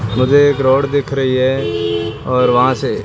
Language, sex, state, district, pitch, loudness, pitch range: Hindi, male, Rajasthan, Bikaner, 130 Hz, -14 LUFS, 120-135 Hz